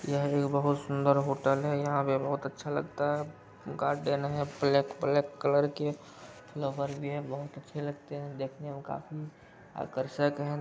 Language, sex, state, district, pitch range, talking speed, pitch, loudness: Hindi, male, Bihar, Araria, 140-145 Hz, 175 wpm, 140 Hz, -31 LUFS